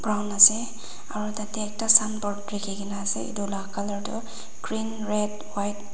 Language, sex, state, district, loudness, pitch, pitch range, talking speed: Nagamese, female, Nagaland, Dimapur, -24 LUFS, 210 Hz, 200-215 Hz, 170 wpm